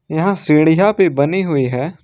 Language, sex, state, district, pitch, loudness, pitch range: Hindi, male, Jharkhand, Ranchi, 160 Hz, -14 LUFS, 145-190 Hz